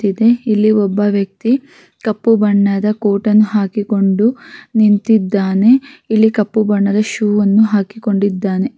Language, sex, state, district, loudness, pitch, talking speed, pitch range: Kannada, female, Karnataka, Raichur, -14 LUFS, 210 Hz, 100 wpm, 200-220 Hz